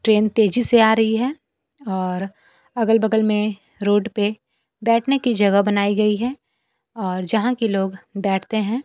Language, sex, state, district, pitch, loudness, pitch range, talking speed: Hindi, female, Bihar, Kaimur, 215 Hz, -19 LUFS, 200-230 Hz, 165 wpm